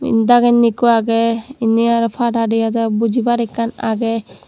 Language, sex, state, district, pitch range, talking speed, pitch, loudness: Chakma, female, Tripura, Dhalai, 225-235 Hz, 160 wpm, 230 Hz, -15 LUFS